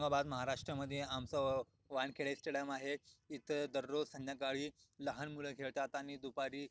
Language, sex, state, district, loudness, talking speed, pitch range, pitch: Marathi, male, Maharashtra, Aurangabad, -42 LUFS, 135 wpm, 135-145 Hz, 140 Hz